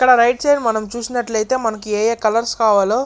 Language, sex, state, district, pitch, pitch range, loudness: Telugu, male, Andhra Pradesh, Chittoor, 230 Hz, 220-245 Hz, -17 LUFS